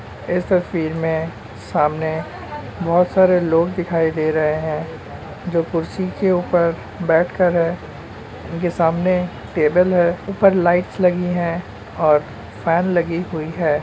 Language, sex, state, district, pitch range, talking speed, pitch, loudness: Hindi, male, West Bengal, Purulia, 155-180 Hz, 125 wpm, 165 Hz, -19 LUFS